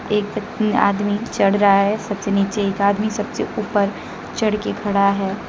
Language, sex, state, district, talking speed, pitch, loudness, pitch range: Hindi, female, Jharkhand, Deoghar, 165 wpm, 205 Hz, -19 LUFS, 200-215 Hz